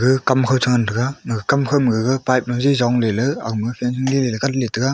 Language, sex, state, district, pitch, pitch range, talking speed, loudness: Wancho, male, Arunachal Pradesh, Longding, 125 Hz, 120-135 Hz, 205 wpm, -18 LUFS